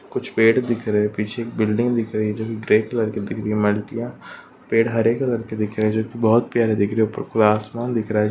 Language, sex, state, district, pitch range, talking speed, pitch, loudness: Hindi, male, Goa, North and South Goa, 105-115 Hz, 280 wpm, 110 Hz, -21 LUFS